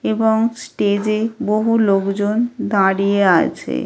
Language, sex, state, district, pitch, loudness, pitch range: Bengali, female, West Bengal, Paschim Medinipur, 210 Hz, -17 LUFS, 195-225 Hz